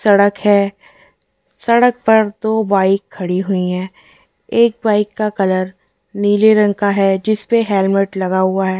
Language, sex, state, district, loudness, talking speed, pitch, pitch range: Hindi, female, Delhi, New Delhi, -15 LUFS, 165 wpm, 200 Hz, 190-215 Hz